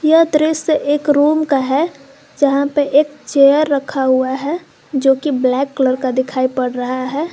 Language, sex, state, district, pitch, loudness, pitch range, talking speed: Hindi, female, Jharkhand, Garhwa, 280 Hz, -15 LUFS, 265-300 Hz, 180 wpm